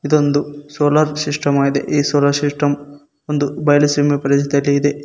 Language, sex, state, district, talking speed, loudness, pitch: Kannada, male, Karnataka, Koppal, 120 wpm, -16 LUFS, 145 Hz